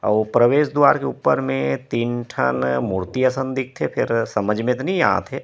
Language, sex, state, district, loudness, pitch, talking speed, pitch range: Chhattisgarhi, male, Chhattisgarh, Rajnandgaon, -20 LUFS, 115 Hz, 200 wpm, 95-130 Hz